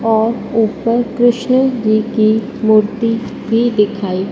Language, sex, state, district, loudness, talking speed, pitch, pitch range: Hindi, female, Madhya Pradesh, Dhar, -15 LUFS, 110 wpm, 225 Hz, 215-235 Hz